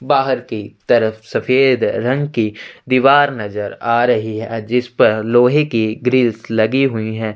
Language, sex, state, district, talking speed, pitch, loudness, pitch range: Hindi, male, Chhattisgarh, Sukma, 165 wpm, 120 Hz, -16 LUFS, 110-130 Hz